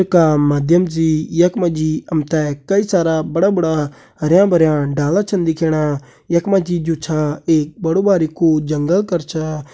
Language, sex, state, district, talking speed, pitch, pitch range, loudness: Kumaoni, male, Uttarakhand, Uttarkashi, 160 wpm, 160 Hz, 155-175 Hz, -16 LUFS